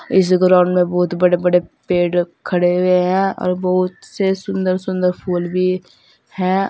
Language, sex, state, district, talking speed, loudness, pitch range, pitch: Hindi, female, Uttar Pradesh, Saharanpur, 160 wpm, -17 LUFS, 180-185 Hz, 180 Hz